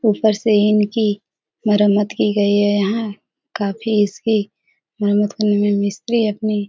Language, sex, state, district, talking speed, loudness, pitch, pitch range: Hindi, female, Bihar, Jahanabad, 125 wpm, -18 LUFS, 210 Hz, 205-215 Hz